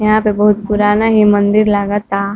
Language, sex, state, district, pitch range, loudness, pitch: Bhojpuri, female, Uttar Pradesh, Varanasi, 205-215 Hz, -12 LUFS, 210 Hz